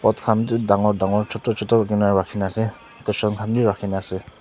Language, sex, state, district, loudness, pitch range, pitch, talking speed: Nagamese, male, Nagaland, Dimapur, -21 LUFS, 100-110 Hz, 105 Hz, 245 wpm